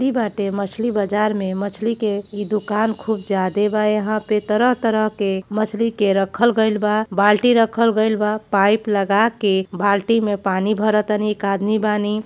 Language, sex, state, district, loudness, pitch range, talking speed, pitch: Bhojpuri, female, Uttar Pradesh, Gorakhpur, -19 LUFS, 200-220 Hz, 170 wpm, 210 Hz